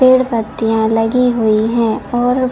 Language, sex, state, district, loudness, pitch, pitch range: Hindi, female, Chhattisgarh, Bilaspur, -14 LUFS, 230 Hz, 225-250 Hz